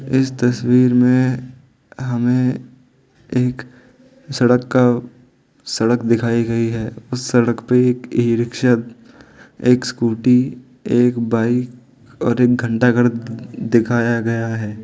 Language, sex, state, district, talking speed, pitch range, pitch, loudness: Hindi, male, Arunachal Pradesh, Lower Dibang Valley, 115 wpm, 115-125 Hz, 125 Hz, -17 LUFS